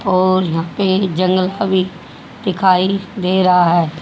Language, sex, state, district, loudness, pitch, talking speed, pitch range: Hindi, female, Haryana, Jhajjar, -15 LUFS, 185 Hz, 150 wpm, 180-190 Hz